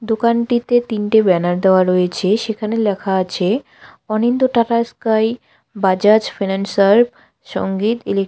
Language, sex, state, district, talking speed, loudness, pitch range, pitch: Bengali, female, West Bengal, Cooch Behar, 110 wpm, -16 LUFS, 195-235 Hz, 215 Hz